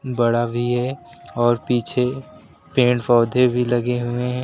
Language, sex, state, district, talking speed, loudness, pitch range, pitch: Hindi, male, Uttar Pradesh, Lucknow, 150 wpm, -20 LUFS, 120-125 Hz, 120 Hz